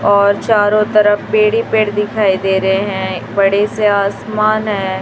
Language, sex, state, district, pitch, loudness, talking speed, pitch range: Hindi, female, Chhattisgarh, Raipur, 205 Hz, -14 LUFS, 165 wpm, 195-215 Hz